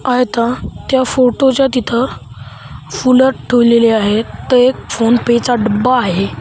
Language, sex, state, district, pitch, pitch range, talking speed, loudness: Marathi, female, Maharashtra, Washim, 240 Hz, 215-255 Hz, 120 wpm, -13 LUFS